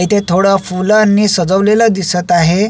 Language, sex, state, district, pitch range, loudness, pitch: Marathi, male, Maharashtra, Solapur, 180-210 Hz, -11 LUFS, 195 Hz